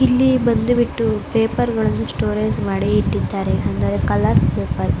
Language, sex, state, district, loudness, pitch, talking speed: Kannada, female, Karnataka, Mysore, -18 LUFS, 105 Hz, 130 wpm